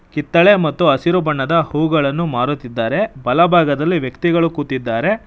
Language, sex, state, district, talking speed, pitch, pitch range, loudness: Kannada, male, Karnataka, Bangalore, 100 wpm, 155 Hz, 140-170 Hz, -16 LUFS